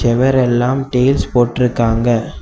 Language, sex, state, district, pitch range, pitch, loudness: Tamil, male, Tamil Nadu, Kanyakumari, 120-130 Hz, 120 Hz, -14 LUFS